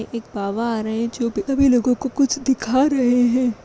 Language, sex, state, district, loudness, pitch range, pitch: Hindi, female, Uttar Pradesh, Budaun, -20 LUFS, 230-265 Hz, 245 Hz